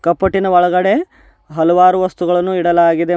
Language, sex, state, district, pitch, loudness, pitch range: Kannada, male, Karnataka, Bidar, 180 Hz, -13 LUFS, 170-185 Hz